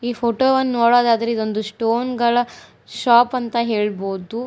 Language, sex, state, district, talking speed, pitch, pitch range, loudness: Kannada, female, Karnataka, Koppal, 135 wpm, 235 Hz, 225-245 Hz, -18 LUFS